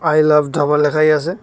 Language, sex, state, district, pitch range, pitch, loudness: Bengali, male, Tripura, West Tripura, 150-155 Hz, 150 Hz, -14 LUFS